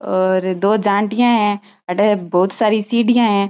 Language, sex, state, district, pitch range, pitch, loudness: Marwari, female, Rajasthan, Churu, 190-215 Hz, 205 Hz, -16 LUFS